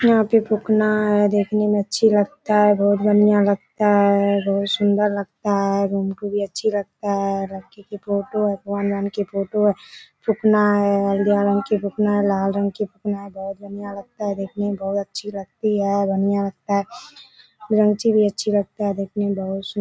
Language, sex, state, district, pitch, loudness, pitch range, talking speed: Hindi, female, Bihar, Kishanganj, 205 Hz, -20 LUFS, 200-210 Hz, 165 wpm